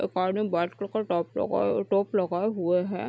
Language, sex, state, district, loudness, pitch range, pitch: Hindi, female, Uttar Pradesh, Deoria, -27 LUFS, 175-200 Hz, 185 Hz